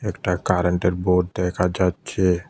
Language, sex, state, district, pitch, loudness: Bengali, male, Tripura, West Tripura, 90 Hz, -22 LUFS